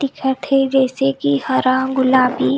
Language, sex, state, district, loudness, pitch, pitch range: Chhattisgarhi, female, Chhattisgarh, Rajnandgaon, -16 LUFS, 260 Hz, 250-270 Hz